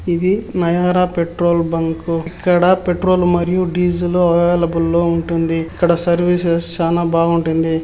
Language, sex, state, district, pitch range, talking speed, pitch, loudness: Telugu, male, Andhra Pradesh, Chittoor, 165-180 Hz, 105 wpm, 170 Hz, -16 LUFS